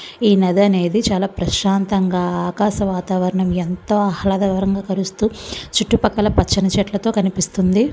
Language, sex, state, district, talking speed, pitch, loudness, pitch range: Telugu, female, Andhra Pradesh, Visakhapatnam, 265 wpm, 195 Hz, -18 LUFS, 185-205 Hz